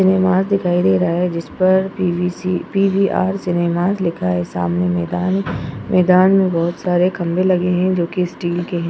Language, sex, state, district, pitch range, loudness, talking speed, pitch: Hindi, female, Uttar Pradesh, Jyotiba Phule Nagar, 170-185 Hz, -17 LUFS, 190 wpm, 180 Hz